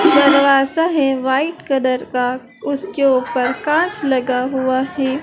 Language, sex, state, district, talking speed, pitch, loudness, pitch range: Hindi, female, Madhya Pradesh, Dhar, 125 wpm, 270 Hz, -17 LUFS, 255-285 Hz